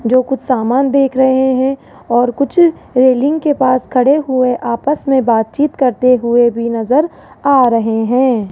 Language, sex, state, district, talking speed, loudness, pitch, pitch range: Hindi, female, Rajasthan, Jaipur, 160 wpm, -13 LUFS, 255 Hz, 240-275 Hz